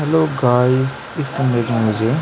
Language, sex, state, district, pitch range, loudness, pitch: Hindi, male, Chhattisgarh, Sukma, 120-150 Hz, -17 LUFS, 130 Hz